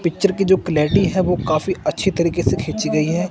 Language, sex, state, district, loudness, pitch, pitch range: Hindi, male, Chandigarh, Chandigarh, -18 LUFS, 180 Hz, 165-190 Hz